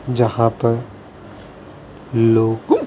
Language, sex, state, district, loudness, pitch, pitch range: Hindi, male, Maharashtra, Mumbai Suburban, -18 LUFS, 115 Hz, 110-115 Hz